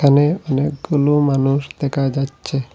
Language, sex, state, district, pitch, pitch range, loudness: Bengali, male, Assam, Hailakandi, 140 Hz, 135-145 Hz, -18 LUFS